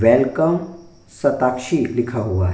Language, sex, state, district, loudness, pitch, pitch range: Hindi, male, Bihar, Bhagalpur, -19 LUFS, 125 Hz, 110-160 Hz